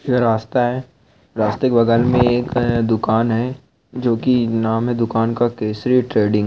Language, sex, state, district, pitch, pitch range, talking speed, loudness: Hindi, male, Bihar, Kishanganj, 120 Hz, 115-125 Hz, 165 wpm, -18 LUFS